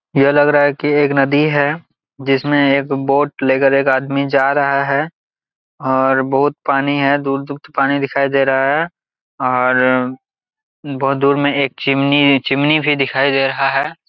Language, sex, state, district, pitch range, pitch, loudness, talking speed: Hindi, male, Jharkhand, Jamtara, 135-145 Hz, 140 Hz, -15 LUFS, 175 wpm